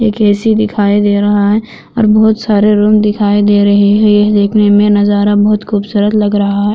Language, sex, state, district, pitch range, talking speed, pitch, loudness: Hindi, female, Andhra Pradesh, Anantapur, 205-215 Hz, 205 wpm, 205 Hz, -10 LUFS